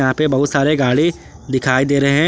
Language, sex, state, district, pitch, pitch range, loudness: Hindi, male, Jharkhand, Garhwa, 140 Hz, 130-150 Hz, -16 LUFS